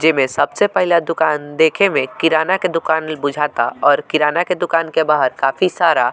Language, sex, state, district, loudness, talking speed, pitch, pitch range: Bhojpuri, male, Bihar, Muzaffarpur, -16 LUFS, 195 wpm, 160 Hz, 150-170 Hz